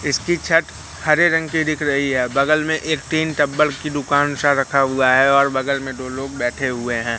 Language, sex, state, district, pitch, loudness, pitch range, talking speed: Hindi, male, Madhya Pradesh, Katni, 140 Hz, -18 LUFS, 135-155 Hz, 225 wpm